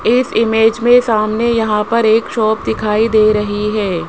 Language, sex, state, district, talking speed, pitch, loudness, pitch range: Hindi, male, Rajasthan, Jaipur, 175 wpm, 220 Hz, -13 LUFS, 215-230 Hz